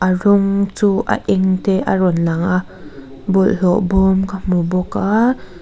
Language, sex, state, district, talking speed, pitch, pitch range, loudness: Mizo, female, Mizoram, Aizawl, 170 wpm, 190 Hz, 180-195 Hz, -16 LUFS